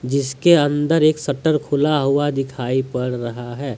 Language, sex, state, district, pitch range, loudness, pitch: Hindi, male, Jharkhand, Deoghar, 125-150 Hz, -19 LUFS, 140 Hz